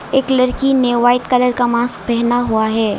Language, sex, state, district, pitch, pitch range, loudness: Hindi, female, Arunachal Pradesh, Lower Dibang Valley, 245 Hz, 235-250 Hz, -15 LUFS